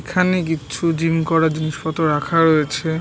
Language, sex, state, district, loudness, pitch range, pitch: Bengali, male, West Bengal, North 24 Parganas, -18 LUFS, 155-165 Hz, 160 Hz